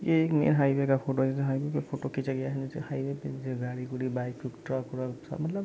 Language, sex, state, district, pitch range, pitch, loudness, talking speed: Bhojpuri, male, Bihar, Saran, 130-140 Hz, 135 Hz, -30 LUFS, 275 wpm